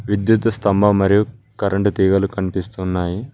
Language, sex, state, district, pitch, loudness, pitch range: Telugu, male, Telangana, Mahabubabad, 100 Hz, -18 LUFS, 95-105 Hz